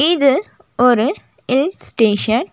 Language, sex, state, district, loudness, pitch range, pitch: Tamil, female, Tamil Nadu, Nilgiris, -16 LUFS, 225-300 Hz, 255 Hz